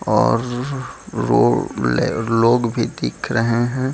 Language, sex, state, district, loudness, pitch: Hindi, male, Bihar, Gaya, -19 LUFS, 115 Hz